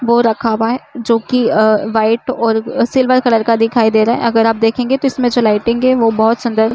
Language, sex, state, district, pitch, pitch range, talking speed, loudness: Hindi, female, Uttar Pradesh, Budaun, 230 Hz, 225-245 Hz, 250 wpm, -13 LUFS